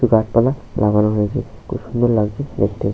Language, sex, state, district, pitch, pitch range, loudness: Bengali, male, West Bengal, Paschim Medinipur, 110 Hz, 105-125 Hz, -18 LUFS